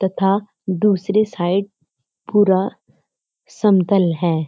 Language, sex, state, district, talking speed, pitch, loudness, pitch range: Hindi, female, Uttarakhand, Uttarkashi, 80 wpm, 190 Hz, -18 LUFS, 175-205 Hz